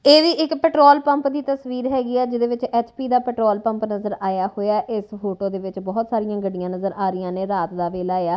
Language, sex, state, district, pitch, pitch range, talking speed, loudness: Punjabi, female, Punjab, Kapurthala, 215 Hz, 190-250 Hz, 245 wpm, -21 LUFS